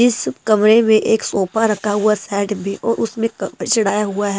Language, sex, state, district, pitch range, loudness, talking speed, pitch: Hindi, female, Himachal Pradesh, Shimla, 205-225 Hz, -17 LUFS, 205 wpm, 215 Hz